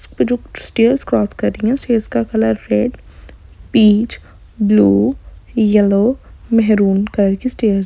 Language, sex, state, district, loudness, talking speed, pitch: Hindi, female, Bihar, Madhepura, -15 LUFS, 130 wpm, 210 Hz